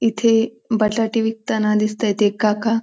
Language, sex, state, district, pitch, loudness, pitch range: Marathi, female, Maharashtra, Pune, 220 Hz, -19 LUFS, 215-225 Hz